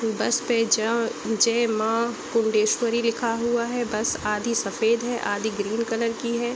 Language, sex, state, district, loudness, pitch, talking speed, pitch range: Hindi, female, Jharkhand, Sahebganj, -24 LUFS, 230 Hz, 165 wpm, 220-235 Hz